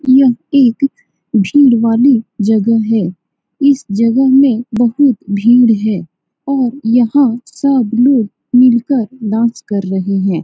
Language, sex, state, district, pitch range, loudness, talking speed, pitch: Hindi, female, Bihar, Saran, 215-265 Hz, -12 LUFS, 125 wpm, 235 Hz